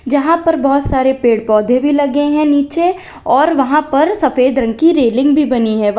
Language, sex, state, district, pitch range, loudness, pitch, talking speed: Hindi, female, Uttar Pradesh, Lalitpur, 255-300 Hz, -13 LUFS, 280 Hz, 210 wpm